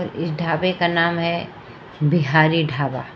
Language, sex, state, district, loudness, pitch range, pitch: Hindi, female, Jharkhand, Palamu, -20 LUFS, 155-170 Hz, 165 Hz